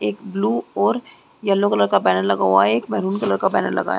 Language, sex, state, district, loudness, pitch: Hindi, female, Chhattisgarh, Rajnandgaon, -19 LUFS, 190 Hz